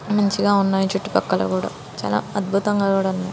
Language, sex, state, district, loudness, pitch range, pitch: Telugu, female, Andhra Pradesh, Srikakulam, -21 LUFS, 185-200 Hz, 195 Hz